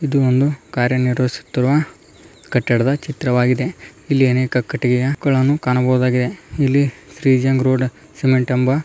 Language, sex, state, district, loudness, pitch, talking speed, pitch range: Kannada, male, Karnataka, Raichur, -18 LUFS, 130 Hz, 115 wpm, 125-140 Hz